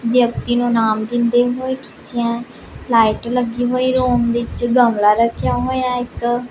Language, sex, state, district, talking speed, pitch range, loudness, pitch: Punjabi, female, Punjab, Pathankot, 140 wpm, 235-245 Hz, -17 LUFS, 240 Hz